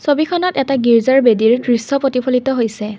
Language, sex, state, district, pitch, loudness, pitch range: Assamese, female, Assam, Kamrup Metropolitan, 255 Hz, -14 LUFS, 235-275 Hz